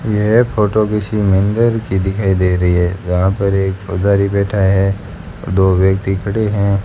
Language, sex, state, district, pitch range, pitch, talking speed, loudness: Hindi, male, Rajasthan, Bikaner, 95-105 Hz, 100 Hz, 175 wpm, -15 LUFS